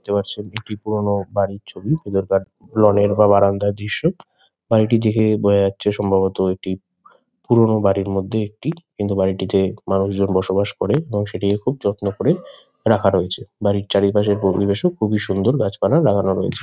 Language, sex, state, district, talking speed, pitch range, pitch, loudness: Bengali, male, West Bengal, Kolkata, 145 wpm, 95-105 Hz, 100 Hz, -19 LUFS